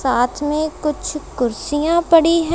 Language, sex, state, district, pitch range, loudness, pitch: Hindi, female, Punjab, Kapurthala, 280-330 Hz, -18 LUFS, 300 Hz